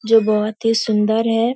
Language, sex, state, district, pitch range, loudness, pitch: Hindi, female, Bihar, Purnia, 215-225 Hz, -17 LUFS, 225 Hz